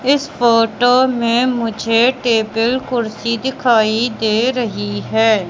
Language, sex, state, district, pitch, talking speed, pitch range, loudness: Hindi, male, Madhya Pradesh, Katni, 230 Hz, 110 wpm, 225-250 Hz, -15 LUFS